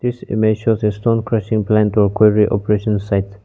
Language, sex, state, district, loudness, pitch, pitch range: English, male, Nagaland, Kohima, -16 LUFS, 105 Hz, 105-110 Hz